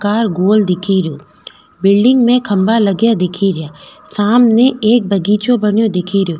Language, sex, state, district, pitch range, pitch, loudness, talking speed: Rajasthani, female, Rajasthan, Nagaur, 190-230 Hz, 205 Hz, -13 LUFS, 150 wpm